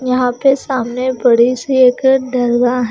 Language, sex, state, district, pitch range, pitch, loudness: Hindi, female, Chandigarh, Chandigarh, 245-260 Hz, 255 Hz, -13 LUFS